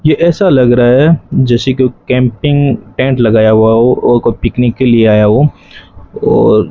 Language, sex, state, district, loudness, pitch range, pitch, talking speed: Hindi, male, Rajasthan, Bikaner, -9 LUFS, 115-135 Hz, 125 Hz, 185 wpm